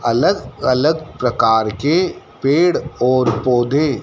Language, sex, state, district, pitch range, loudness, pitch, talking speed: Hindi, male, Madhya Pradesh, Dhar, 115-155 Hz, -16 LUFS, 130 Hz, 105 wpm